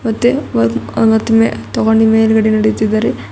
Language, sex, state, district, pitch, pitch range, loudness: Kannada, female, Karnataka, Bidar, 220 Hz, 215-225 Hz, -13 LUFS